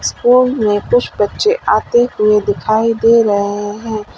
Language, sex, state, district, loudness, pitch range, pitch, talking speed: Hindi, female, Uttar Pradesh, Lalitpur, -13 LUFS, 205-240 Hz, 220 Hz, 145 wpm